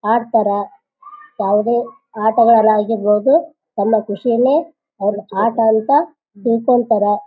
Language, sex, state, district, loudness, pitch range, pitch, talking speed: Kannada, female, Karnataka, Bijapur, -16 LUFS, 210-280 Hz, 230 Hz, 80 wpm